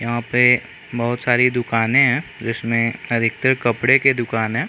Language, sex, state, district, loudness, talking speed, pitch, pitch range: Hindi, male, Chhattisgarh, Korba, -18 LUFS, 155 wpm, 120 Hz, 115-125 Hz